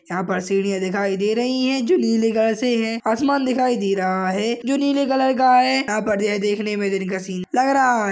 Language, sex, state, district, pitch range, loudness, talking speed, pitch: Hindi, male, Chhattisgarh, Kabirdham, 195-255 Hz, -20 LUFS, 235 wpm, 225 Hz